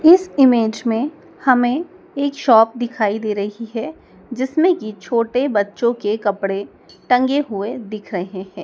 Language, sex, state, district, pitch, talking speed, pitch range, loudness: Hindi, male, Madhya Pradesh, Dhar, 235 Hz, 145 wpm, 210-270 Hz, -18 LUFS